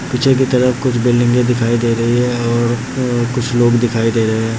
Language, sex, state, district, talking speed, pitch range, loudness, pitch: Hindi, male, Bihar, Muzaffarpur, 210 wpm, 120-125 Hz, -15 LUFS, 120 Hz